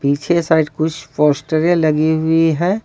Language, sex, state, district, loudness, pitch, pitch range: Hindi, male, Jharkhand, Ranchi, -16 LUFS, 160 Hz, 150-165 Hz